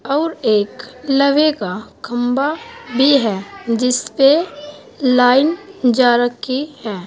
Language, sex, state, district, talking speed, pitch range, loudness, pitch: Hindi, female, Uttar Pradesh, Saharanpur, 110 wpm, 240-295 Hz, -16 LUFS, 260 Hz